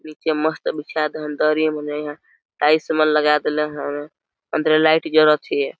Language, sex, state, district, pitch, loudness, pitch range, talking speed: Awadhi, male, Chhattisgarh, Balrampur, 155 Hz, -19 LUFS, 150-155 Hz, 165 wpm